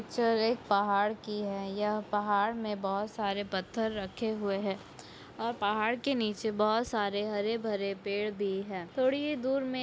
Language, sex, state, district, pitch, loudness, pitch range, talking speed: Hindi, female, Chhattisgarh, Raigarh, 210 Hz, -32 LUFS, 200-225 Hz, 175 wpm